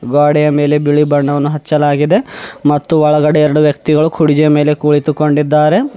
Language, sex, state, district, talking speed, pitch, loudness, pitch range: Kannada, male, Karnataka, Bidar, 130 wpm, 150 Hz, -12 LUFS, 145-150 Hz